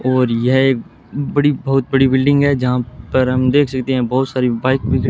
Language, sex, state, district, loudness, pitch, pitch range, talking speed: Hindi, male, Rajasthan, Bikaner, -16 LUFS, 130 Hz, 125-135 Hz, 210 wpm